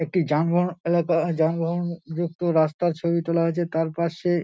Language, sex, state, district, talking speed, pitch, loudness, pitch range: Bengali, male, West Bengal, Dakshin Dinajpur, 160 wpm, 170 Hz, -24 LUFS, 165-175 Hz